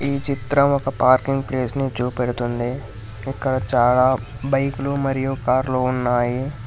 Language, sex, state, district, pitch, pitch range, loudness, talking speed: Telugu, male, Telangana, Hyderabad, 130 Hz, 125-135 Hz, -20 LUFS, 115 wpm